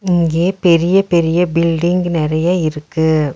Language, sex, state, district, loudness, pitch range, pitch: Tamil, female, Tamil Nadu, Nilgiris, -14 LUFS, 160-180 Hz, 170 Hz